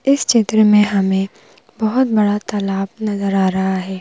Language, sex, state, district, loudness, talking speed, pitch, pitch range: Hindi, female, Madhya Pradesh, Bhopal, -16 LUFS, 165 wpm, 205 Hz, 195-215 Hz